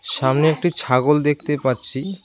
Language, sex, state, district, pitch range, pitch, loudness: Bengali, male, West Bengal, Cooch Behar, 130-160 Hz, 150 Hz, -19 LUFS